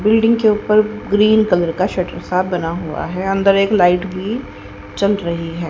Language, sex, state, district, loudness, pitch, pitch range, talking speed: Hindi, female, Haryana, Rohtak, -16 LUFS, 195 Hz, 175-210 Hz, 190 wpm